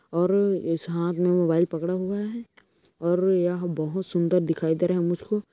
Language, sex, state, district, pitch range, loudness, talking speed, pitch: Hindi, male, Chhattisgarh, Kabirdham, 170-190 Hz, -25 LUFS, 185 wpm, 175 Hz